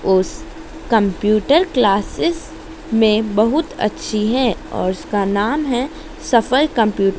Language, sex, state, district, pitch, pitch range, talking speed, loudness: Hindi, female, Madhya Pradesh, Dhar, 230 Hz, 205-300 Hz, 110 wpm, -17 LUFS